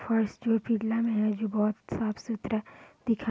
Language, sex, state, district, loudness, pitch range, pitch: Hindi, female, Bihar, Sitamarhi, -30 LUFS, 215-225 Hz, 220 Hz